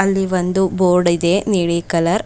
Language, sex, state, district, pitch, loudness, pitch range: Kannada, female, Karnataka, Bidar, 185 Hz, -16 LUFS, 170-190 Hz